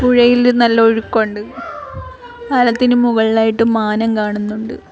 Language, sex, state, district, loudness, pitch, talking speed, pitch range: Malayalam, female, Kerala, Kollam, -14 LUFS, 230 Hz, 85 wpm, 220-245 Hz